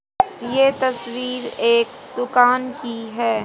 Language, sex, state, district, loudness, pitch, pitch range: Hindi, female, Haryana, Jhajjar, -20 LUFS, 250 Hz, 240-275 Hz